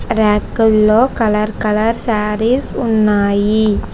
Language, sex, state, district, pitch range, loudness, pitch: Telugu, female, Telangana, Hyderabad, 210-225 Hz, -14 LUFS, 215 Hz